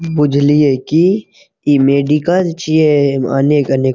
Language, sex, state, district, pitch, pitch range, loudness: Maithili, male, Bihar, Saharsa, 145 Hz, 140-160 Hz, -13 LUFS